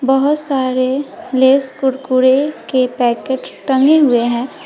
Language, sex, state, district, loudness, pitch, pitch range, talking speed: Hindi, female, West Bengal, Alipurduar, -15 LUFS, 265 Hz, 255-280 Hz, 115 wpm